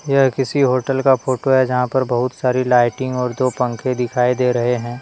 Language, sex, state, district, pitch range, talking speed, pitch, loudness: Hindi, male, Jharkhand, Deoghar, 125-130 Hz, 205 wpm, 125 Hz, -17 LUFS